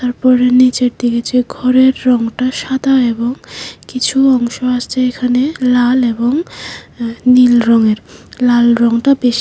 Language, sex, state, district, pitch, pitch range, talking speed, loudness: Bengali, female, Tripura, West Tripura, 250 Hz, 240-255 Hz, 120 wpm, -12 LUFS